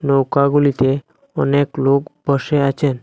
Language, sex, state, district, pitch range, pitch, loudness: Bengali, male, Assam, Hailakandi, 135-145 Hz, 140 Hz, -17 LUFS